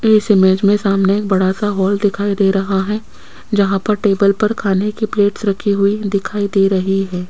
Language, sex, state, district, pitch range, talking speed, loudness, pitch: Hindi, female, Rajasthan, Jaipur, 195-205 Hz, 205 wpm, -15 LUFS, 200 Hz